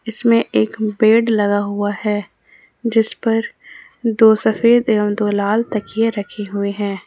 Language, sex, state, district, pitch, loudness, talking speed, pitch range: Hindi, female, Jharkhand, Ranchi, 215 Hz, -17 LUFS, 150 wpm, 205-225 Hz